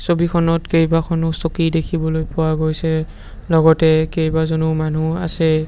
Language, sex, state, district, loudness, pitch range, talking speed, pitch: Assamese, male, Assam, Sonitpur, -17 LUFS, 160-165 Hz, 105 wpm, 160 Hz